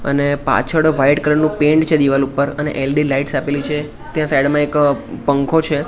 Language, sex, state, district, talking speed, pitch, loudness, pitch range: Gujarati, male, Gujarat, Gandhinagar, 205 wpm, 145 Hz, -16 LUFS, 140-150 Hz